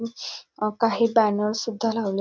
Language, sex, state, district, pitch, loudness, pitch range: Marathi, female, Maharashtra, Nagpur, 225 Hz, -23 LUFS, 210-230 Hz